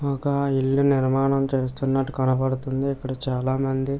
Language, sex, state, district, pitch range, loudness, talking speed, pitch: Telugu, male, Andhra Pradesh, Visakhapatnam, 130-135 Hz, -23 LUFS, 120 wpm, 135 Hz